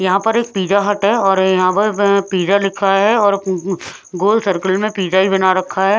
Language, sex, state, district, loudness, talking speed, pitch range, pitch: Hindi, female, Punjab, Pathankot, -15 LUFS, 260 wpm, 190-200 Hz, 195 Hz